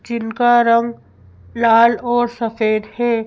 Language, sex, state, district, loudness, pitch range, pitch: Hindi, female, Madhya Pradesh, Bhopal, -16 LUFS, 220-240 Hz, 230 Hz